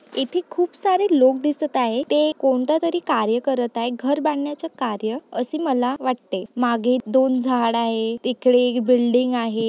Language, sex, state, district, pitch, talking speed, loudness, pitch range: Marathi, female, Maharashtra, Nagpur, 255 Hz, 155 wpm, -21 LUFS, 240-295 Hz